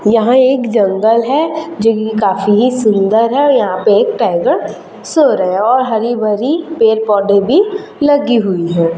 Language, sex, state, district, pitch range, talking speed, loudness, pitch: Hindi, female, Chhattisgarh, Raipur, 210-285 Hz, 165 wpm, -12 LUFS, 225 Hz